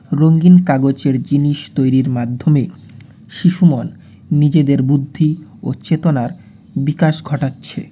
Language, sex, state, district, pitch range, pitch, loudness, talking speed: Bengali, male, West Bengal, Alipurduar, 135-160 Hz, 145 Hz, -15 LUFS, 100 wpm